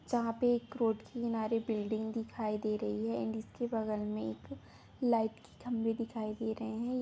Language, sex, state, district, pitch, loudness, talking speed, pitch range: Hindi, female, West Bengal, Paschim Medinipur, 220 Hz, -36 LUFS, 195 wpm, 210-230 Hz